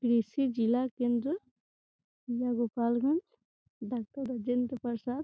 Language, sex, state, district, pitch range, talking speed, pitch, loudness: Hindi, female, Bihar, Gopalganj, 240-260 Hz, 90 wpm, 245 Hz, -32 LUFS